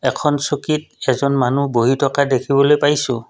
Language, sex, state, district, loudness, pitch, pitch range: Assamese, male, Assam, Kamrup Metropolitan, -17 LUFS, 140 Hz, 130-145 Hz